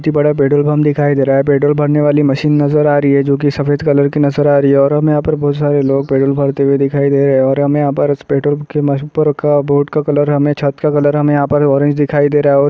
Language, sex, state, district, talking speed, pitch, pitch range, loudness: Hindi, male, Bihar, Saharsa, 305 wpm, 145 Hz, 140-145 Hz, -12 LUFS